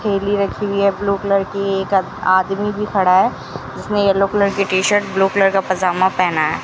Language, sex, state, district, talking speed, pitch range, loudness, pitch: Hindi, female, Rajasthan, Bikaner, 205 wpm, 185-200 Hz, -17 LUFS, 195 Hz